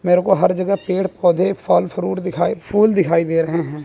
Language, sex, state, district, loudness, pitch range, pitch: Hindi, male, Chandigarh, Chandigarh, -17 LUFS, 170-195 Hz, 185 Hz